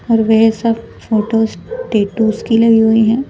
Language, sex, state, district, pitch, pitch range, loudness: Hindi, female, Madhya Pradesh, Bhopal, 225 Hz, 220-230 Hz, -13 LUFS